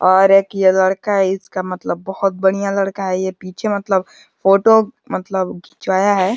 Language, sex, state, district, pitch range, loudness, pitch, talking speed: Hindi, male, Uttar Pradesh, Deoria, 185-200 Hz, -17 LUFS, 190 Hz, 170 wpm